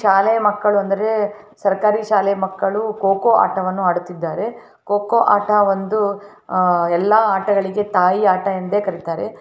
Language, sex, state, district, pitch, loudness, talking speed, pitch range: Kannada, female, Karnataka, Bellary, 200 Hz, -18 LUFS, 120 wpm, 190-210 Hz